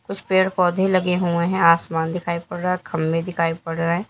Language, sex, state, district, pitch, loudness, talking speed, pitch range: Hindi, female, Uttar Pradesh, Lalitpur, 170 Hz, -21 LUFS, 205 wpm, 165-180 Hz